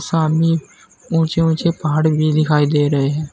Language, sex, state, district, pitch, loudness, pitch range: Hindi, male, Uttar Pradesh, Saharanpur, 155 Hz, -17 LUFS, 150-165 Hz